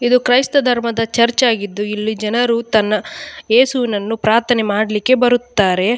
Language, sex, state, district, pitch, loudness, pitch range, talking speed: Kannada, female, Karnataka, Dakshina Kannada, 235 Hz, -15 LUFS, 215-245 Hz, 120 wpm